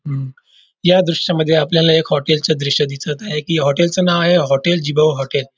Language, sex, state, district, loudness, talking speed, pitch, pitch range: Marathi, male, Maharashtra, Dhule, -15 LUFS, 205 wpm, 160 Hz, 145-175 Hz